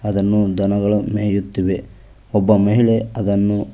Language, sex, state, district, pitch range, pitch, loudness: Kannada, male, Karnataka, Koppal, 100-105 Hz, 100 Hz, -17 LUFS